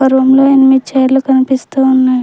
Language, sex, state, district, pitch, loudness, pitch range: Telugu, female, Telangana, Mahabubabad, 265 Hz, -10 LUFS, 260-270 Hz